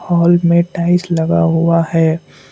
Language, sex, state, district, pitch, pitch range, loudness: Hindi, male, Assam, Kamrup Metropolitan, 170 Hz, 165-170 Hz, -13 LUFS